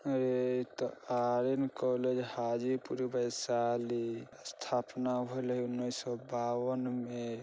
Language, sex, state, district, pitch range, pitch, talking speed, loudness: Bajjika, male, Bihar, Vaishali, 120-125 Hz, 125 Hz, 75 wpm, -35 LUFS